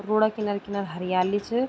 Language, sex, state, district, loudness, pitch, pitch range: Garhwali, female, Uttarakhand, Tehri Garhwal, -26 LUFS, 205 Hz, 195-215 Hz